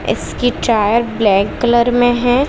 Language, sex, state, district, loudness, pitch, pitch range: Hindi, female, Bihar, West Champaran, -14 LUFS, 235 Hz, 225-245 Hz